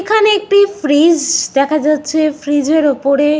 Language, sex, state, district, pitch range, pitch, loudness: Bengali, female, West Bengal, Paschim Medinipur, 290-340 Hz, 305 Hz, -13 LUFS